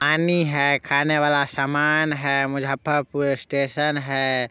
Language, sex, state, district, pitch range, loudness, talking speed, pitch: Hindi, male, Bihar, Muzaffarpur, 135-150 Hz, -21 LUFS, 120 wpm, 140 Hz